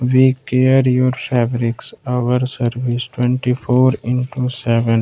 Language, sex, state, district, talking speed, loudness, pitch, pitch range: Hindi, male, Jharkhand, Ranchi, 95 wpm, -17 LUFS, 125 Hz, 120-130 Hz